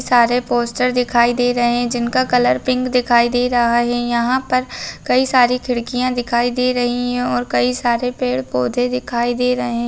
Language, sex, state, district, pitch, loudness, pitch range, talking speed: Hindi, female, Karnataka, Gulbarga, 245 Hz, -17 LUFS, 240-250 Hz, 95 wpm